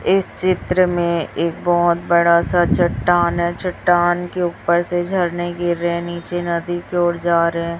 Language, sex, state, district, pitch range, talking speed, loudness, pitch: Hindi, male, Chhattisgarh, Raipur, 170-175 Hz, 175 wpm, -18 LUFS, 175 Hz